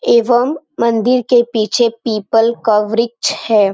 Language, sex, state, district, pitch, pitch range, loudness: Hindi, female, Bihar, Jamui, 235 Hz, 225-245 Hz, -14 LUFS